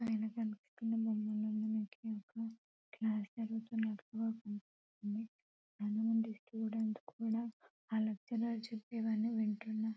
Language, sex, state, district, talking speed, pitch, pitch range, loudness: Telugu, female, Telangana, Nalgonda, 95 wpm, 220 Hz, 215-225 Hz, -40 LUFS